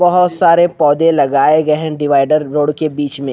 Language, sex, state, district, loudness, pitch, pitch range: Hindi, male, Haryana, Rohtak, -13 LUFS, 150 Hz, 145-165 Hz